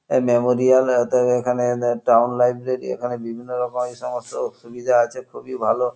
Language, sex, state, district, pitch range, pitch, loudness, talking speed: Bengali, male, West Bengal, North 24 Parganas, 120-125 Hz, 125 Hz, -20 LUFS, 170 wpm